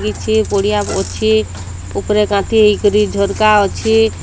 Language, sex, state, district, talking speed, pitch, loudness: Odia, female, Odisha, Sambalpur, 115 wpm, 205 Hz, -14 LUFS